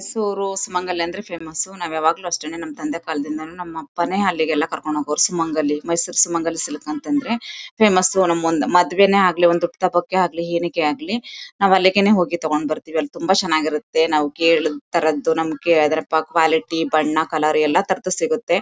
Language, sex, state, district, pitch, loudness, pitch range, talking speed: Kannada, female, Karnataka, Mysore, 165 Hz, -19 LUFS, 155-185 Hz, 150 wpm